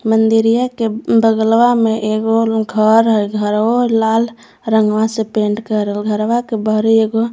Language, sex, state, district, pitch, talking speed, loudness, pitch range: Magahi, female, Jharkhand, Palamu, 220 Hz, 130 wpm, -14 LUFS, 215-225 Hz